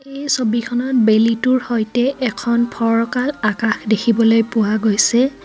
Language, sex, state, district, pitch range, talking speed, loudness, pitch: Assamese, female, Assam, Kamrup Metropolitan, 225-250 Hz, 110 wpm, -17 LUFS, 235 Hz